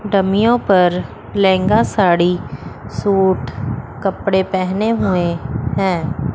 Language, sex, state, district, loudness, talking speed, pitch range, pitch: Hindi, female, Chandigarh, Chandigarh, -16 LUFS, 85 wpm, 170-200 Hz, 190 Hz